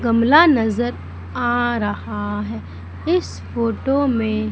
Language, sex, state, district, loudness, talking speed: Hindi, female, Madhya Pradesh, Umaria, -19 LUFS, 105 wpm